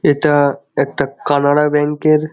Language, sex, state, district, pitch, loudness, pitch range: Bengali, male, West Bengal, Jhargram, 150 Hz, -15 LUFS, 145-150 Hz